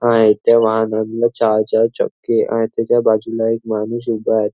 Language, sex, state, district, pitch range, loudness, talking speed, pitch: Marathi, male, Maharashtra, Nagpur, 110-115 Hz, -16 LUFS, 170 wpm, 115 Hz